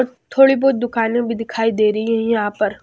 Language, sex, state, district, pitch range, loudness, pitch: Hindi, female, Haryana, Jhajjar, 220-245 Hz, -17 LUFS, 230 Hz